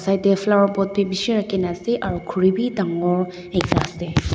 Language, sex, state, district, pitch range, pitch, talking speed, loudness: Nagamese, female, Nagaland, Dimapur, 180-200 Hz, 190 Hz, 205 wpm, -21 LUFS